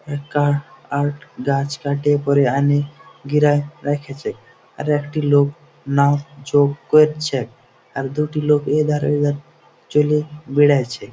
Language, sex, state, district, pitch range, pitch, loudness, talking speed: Bengali, male, West Bengal, Jhargram, 140-150 Hz, 145 Hz, -19 LUFS, 100 wpm